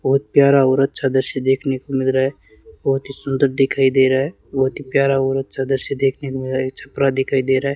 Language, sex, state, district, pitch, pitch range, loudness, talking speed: Hindi, male, Rajasthan, Bikaner, 135 Hz, 130-140 Hz, -18 LUFS, 260 wpm